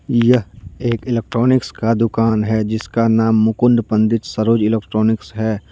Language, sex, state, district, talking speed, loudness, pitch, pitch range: Hindi, male, Jharkhand, Deoghar, 135 wpm, -16 LUFS, 110 Hz, 110-115 Hz